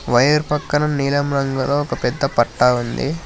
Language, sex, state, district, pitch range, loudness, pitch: Telugu, male, Telangana, Hyderabad, 125-150 Hz, -18 LUFS, 140 Hz